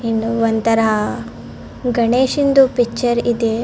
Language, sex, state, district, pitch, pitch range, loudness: Kannada, female, Karnataka, Bellary, 235 Hz, 225-245 Hz, -16 LUFS